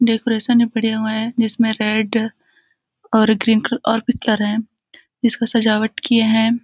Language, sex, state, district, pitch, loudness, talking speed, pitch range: Hindi, female, Chhattisgarh, Balrampur, 225 Hz, -17 LUFS, 170 wpm, 220-235 Hz